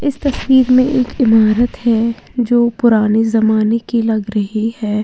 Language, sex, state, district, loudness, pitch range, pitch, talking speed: Hindi, female, Uttar Pradesh, Lalitpur, -14 LUFS, 220-245 Hz, 230 Hz, 155 wpm